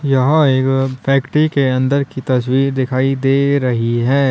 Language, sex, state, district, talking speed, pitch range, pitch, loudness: Hindi, male, Uttar Pradesh, Lalitpur, 155 wpm, 130-140 Hz, 135 Hz, -15 LUFS